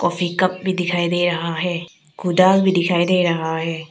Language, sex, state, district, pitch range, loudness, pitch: Hindi, female, Arunachal Pradesh, Papum Pare, 170-180 Hz, -19 LUFS, 175 Hz